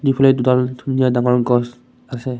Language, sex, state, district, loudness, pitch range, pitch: Assamese, male, Assam, Kamrup Metropolitan, -16 LUFS, 125-130 Hz, 125 Hz